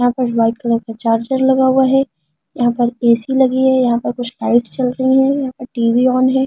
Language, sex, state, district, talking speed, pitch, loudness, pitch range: Hindi, female, Delhi, New Delhi, 240 wpm, 250 Hz, -15 LUFS, 235-265 Hz